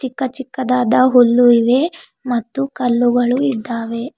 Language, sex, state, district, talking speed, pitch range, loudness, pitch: Kannada, female, Karnataka, Bidar, 100 wpm, 240-260 Hz, -16 LUFS, 250 Hz